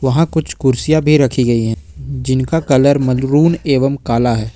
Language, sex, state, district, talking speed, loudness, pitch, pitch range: Hindi, male, Jharkhand, Ranchi, 170 wpm, -14 LUFS, 135 Hz, 125-150 Hz